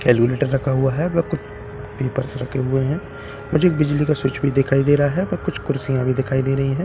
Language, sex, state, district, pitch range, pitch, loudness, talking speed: Hindi, male, Bihar, Katihar, 130-145 Hz, 135 Hz, -20 LUFS, 210 wpm